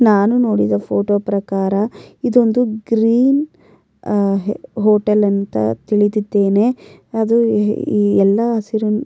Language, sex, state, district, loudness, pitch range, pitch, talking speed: Kannada, female, Karnataka, Mysore, -16 LUFS, 200-225 Hz, 210 Hz, 85 wpm